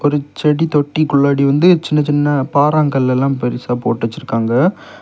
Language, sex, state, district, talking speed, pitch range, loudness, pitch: Tamil, male, Tamil Nadu, Kanyakumari, 130 wpm, 130-150 Hz, -15 LUFS, 145 Hz